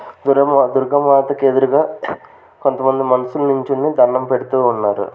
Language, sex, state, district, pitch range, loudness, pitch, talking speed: Telugu, male, Andhra Pradesh, Manyam, 130-140 Hz, -15 LUFS, 135 Hz, 115 wpm